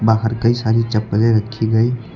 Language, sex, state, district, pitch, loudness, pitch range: Hindi, male, Uttar Pradesh, Lucknow, 110 Hz, -17 LUFS, 110-115 Hz